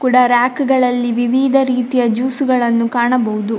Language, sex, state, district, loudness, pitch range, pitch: Kannada, female, Karnataka, Dakshina Kannada, -15 LUFS, 240-255 Hz, 250 Hz